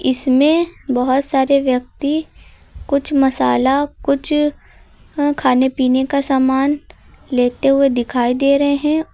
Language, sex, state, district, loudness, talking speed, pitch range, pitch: Hindi, female, Uttar Pradesh, Lucknow, -16 LUFS, 120 wpm, 260-290 Hz, 275 Hz